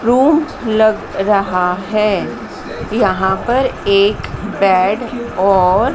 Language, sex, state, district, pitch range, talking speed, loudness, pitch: Hindi, female, Madhya Pradesh, Dhar, 190-230 Hz, 90 wpm, -15 LUFS, 205 Hz